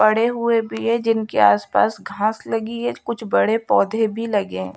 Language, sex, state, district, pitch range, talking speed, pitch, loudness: Hindi, female, Odisha, Malkangiri, 200-230 Hz, 190 wpm, 220 Hz, -20 LUFS